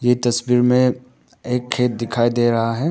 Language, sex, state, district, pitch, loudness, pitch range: Hindi, male, Arunachal Pradesh, Papum Pare, 125 Hz, -18 LUFS, 120-125 Hz